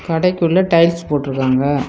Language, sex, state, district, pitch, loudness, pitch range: Tamil, female, Tamil Nadu, Kanyakumari, 165 Hz, -15 LUFS, 140-170 Hz